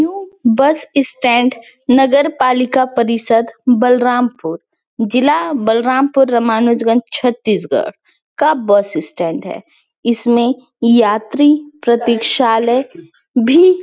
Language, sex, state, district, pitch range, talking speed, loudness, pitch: Hindi, female, Chhattisgarh, Balrampur, 230-275 Hz, 80 wpm, -14 LUFS, 245 Hz